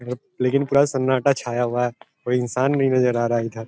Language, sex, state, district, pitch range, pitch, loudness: Hindi, male, Bihar, East Champaran, 120-135 Hz, 125 Hz, -21 LUFS